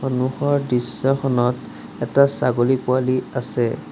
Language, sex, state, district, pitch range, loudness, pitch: Assamese, male, Assam, Sonitpur, 125-135 Hz, -20 LUFS, 130 Hz